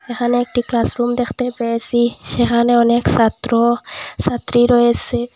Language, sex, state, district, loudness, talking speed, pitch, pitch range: Bengali, female, Assam, Hailakandi, -16 LUFS, 110 wpm, 240 Hz, 235-245 Hz